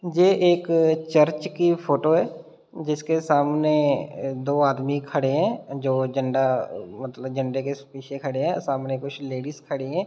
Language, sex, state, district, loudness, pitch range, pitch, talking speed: Hindi, male, Bihar, Muzaffarpur, -23 LUFS, 135-160 Hz, 140 Hz, 160 wpm